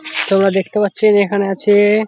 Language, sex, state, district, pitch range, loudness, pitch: Bengali, male, West Bengal, Jhargram, 195-215 Hz, -14 LUFS, 205 Hz